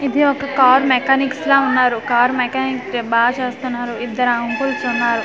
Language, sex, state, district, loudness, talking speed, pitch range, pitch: Telugu, female, Andhra Pradesh, Manyam, -16 LUFS, 150 wpm, 240-270 Hz, 255 Hz